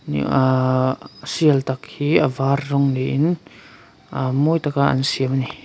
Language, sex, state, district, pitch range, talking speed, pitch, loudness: Mizo, male, Mizoram, Aizawl, 130-145 Hz, 170 wpm, 135 Hz, -20 LUFS